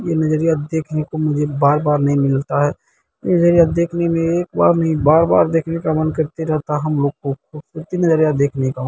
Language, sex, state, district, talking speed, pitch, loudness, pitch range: Hindi, male, Bihar, Saharsa, 200 wpm, 155 Hz, -17 LUFS, 145-165 Hz